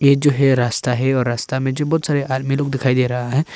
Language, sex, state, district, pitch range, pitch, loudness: Hindi, male, Arunachal Pradesh, Papum Pare, 125-140 Hz, 135 Hz, -18 LUFS